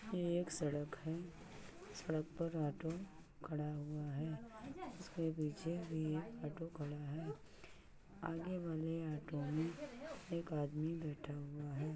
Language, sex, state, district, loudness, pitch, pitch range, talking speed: Hindi, male, Uttar Pradesh, Hamirpur, -44 LUFS, 160 Hz, 150-170 Hz, 130 wpm